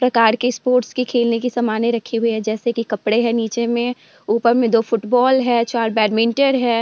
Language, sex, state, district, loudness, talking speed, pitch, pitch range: Hindi, female, Bihar, Vaishali, -18 LUFS, 200 wpm, 235 Hz, 225-245 Hz